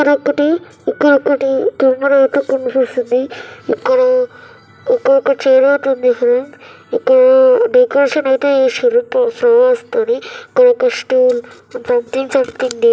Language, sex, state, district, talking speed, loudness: Telugu, male, Andhra Pradesh, Chittoor, 75 wpm, -13 LUFS